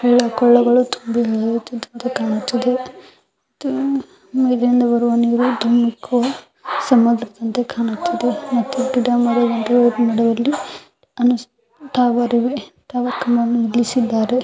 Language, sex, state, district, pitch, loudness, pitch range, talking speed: Kannada, female, Karnataka, Belgaum, 240 Hz, -18 LUFS, 235-250 Hz, 70 wpm